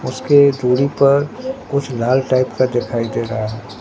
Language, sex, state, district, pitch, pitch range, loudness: Hindi, male, Bihar, Katihar, 130 Hz, 120-140 Hz, -16 LUFS